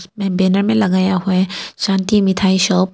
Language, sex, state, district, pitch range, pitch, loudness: Hindi, female, Arunachal Pradesh, Papum Pare, 185-195 Hz, 190 Hz, -16 LUFS